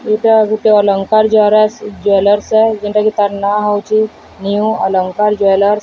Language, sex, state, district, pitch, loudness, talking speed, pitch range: Odia, female, Odisha, Sambalpur, 210 Hz, -12 LUFS, 135 wpm, 205-215 Hz